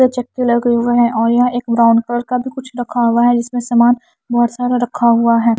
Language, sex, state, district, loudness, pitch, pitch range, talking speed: Hindi, female, Punjab, Kapurthala, -15 LUFS, 240 Hz, 235-245 Hz, 235 wpm